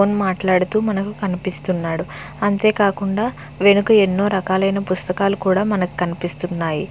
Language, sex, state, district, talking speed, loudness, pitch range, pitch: Telugu, female, Andhra Pradesh, Visakhapatnam, 115 wpm, -19 LUFS, 185-205 Hz, 195 Hz